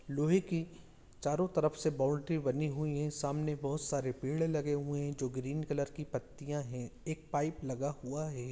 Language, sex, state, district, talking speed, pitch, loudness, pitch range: Hindi, male, Chhattisgarh, Kabirdham, 190 wpm, 145 Hz, -36 LUFS, 140-155 Hz